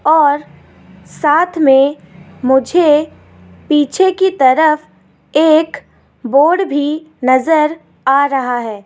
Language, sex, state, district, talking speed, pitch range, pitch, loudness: Hindi, female, Rajasthan, Jaipur, 95 wpm, 265-315 Hz, 295 Hz, -13 LUFS